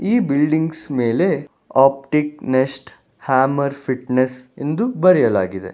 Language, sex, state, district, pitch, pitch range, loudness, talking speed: Kannada, male, Karnataka, Bangalore, 135 Hz, 130-150 Hz, -18 LUFS, 95 wpm